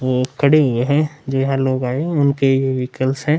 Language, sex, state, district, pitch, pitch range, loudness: Hindi, male, Bihar, Vaishali, 135 Hz, 130-145 Hz, -17 LUFS